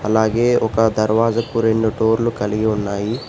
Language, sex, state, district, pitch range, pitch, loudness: Telugu, male, Telangana, Hyderabad, 110-115 Hz, 110 Hz, -18 LUFS